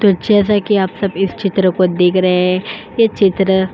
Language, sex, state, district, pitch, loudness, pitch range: Hindi, female, Uttar Pradesh, Jyotiba Phule Nagar, 195 Hz, -14 LUFS, 185-205 Hz